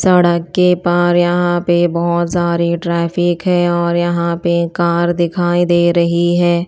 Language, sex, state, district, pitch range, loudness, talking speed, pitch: Hindi, female, Chandigarh, Chandigarh, 170-175 Hz, -14 LUFS, 155 wpm, 175 Hz